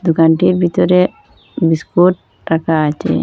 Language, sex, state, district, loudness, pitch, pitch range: Bengali, female, Assam, Hailakandi, -14 LUFS, 165 Hz, 160-180 Hz